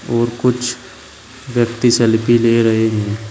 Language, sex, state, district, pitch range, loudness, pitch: Hindi, male, Uttar Pradesh, Shamli, 110-125 Hz, -15 LUFS, 120 Hz